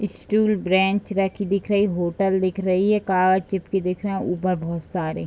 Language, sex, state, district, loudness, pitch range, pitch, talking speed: Hindi, female, Bihar, Bhagalpur, -22 LUFS, 185-200 Hz, 190 Hz, 205 wpm